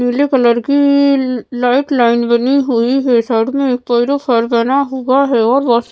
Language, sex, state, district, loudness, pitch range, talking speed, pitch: Hindi, female, Maharashtra, Mumbai Suburban, -13 LUFS, 235-275 Hz, 185 wpm, 250 Hz